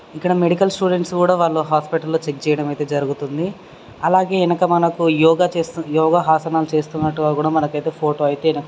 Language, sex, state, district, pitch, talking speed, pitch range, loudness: Telugu, male, Karnataka, Dharwad, 160 Hz, 165 wpm, 150-175 Hz, -18 LUFS